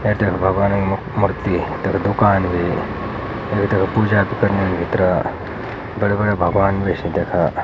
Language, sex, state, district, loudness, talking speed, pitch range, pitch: Garhwali, male, Uttarakhand, Uttarkashi, -19 LUFS, 120 wpm, 95-105 Hz, 100 Hz